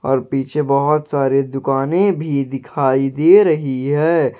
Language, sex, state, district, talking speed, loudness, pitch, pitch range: Hindi, male, Jharkhand, Ranchi, 135 wpm, -16 LUFS, 140 Hz, 135-150 Hz